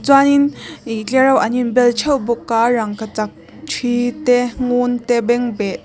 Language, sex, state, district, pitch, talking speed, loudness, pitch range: Mizo, female, Mizoram, Aizawl, 245 Hz, 135 wpm, -16 LUFS, 230-255 Hz